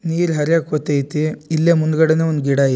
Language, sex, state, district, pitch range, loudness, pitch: Kannada, male, Karnataka, Dharwad, 150-165 Hz, -17 LUFS, 155 Hz